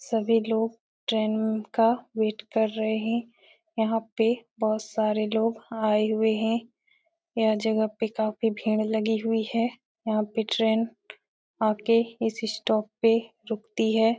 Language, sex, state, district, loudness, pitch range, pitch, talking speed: Hindi, female, Uttar Pradesh, Etah, -26 LUFS, 220-230 Hz, 225 Hz, 145 wpm